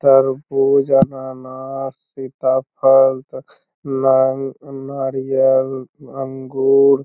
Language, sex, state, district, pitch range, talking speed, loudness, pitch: Magahi, male, Bihar, Lakhisarai, 130-135 Hz, 50 wpm, -17 LUFS, 135 Hz